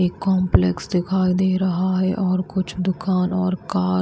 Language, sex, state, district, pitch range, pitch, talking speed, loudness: Hindi, female, Himachal Pradesh, Shimla, 180-185 Hz, 185 Hz, 180 wpm, -21 LUFS